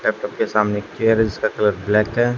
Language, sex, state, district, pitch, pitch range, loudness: Hindi, male, Haryana, Charkhi Dadri, 110 Hz, 105-120 Hz, -19 LUFS